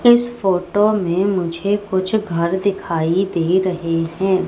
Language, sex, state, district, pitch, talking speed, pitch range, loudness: Hindi, female, Madhya Pradesh, Katni, 185 Hz, 135 wpm, 175-200 Hz, -18 LUFS